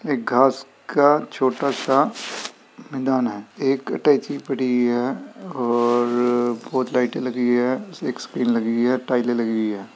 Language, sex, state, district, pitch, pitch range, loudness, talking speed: Hindi, male, Bihar, Begusarai, 125 Hz, 120-135 Hz, -21 LUFS, 150 wpm